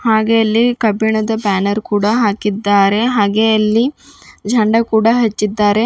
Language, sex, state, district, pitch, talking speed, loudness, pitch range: Kannada, female, Karnataka, Bidar, 220 Hz, 110 wpm, -14 LUFS, 205-225 Hz